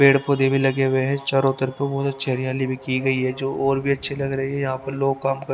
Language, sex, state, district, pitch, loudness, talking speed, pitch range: Hindi, male, Haryana, Rohtak, 135 Hz, -22 LUFS, 290 wpm, 130-140 Hz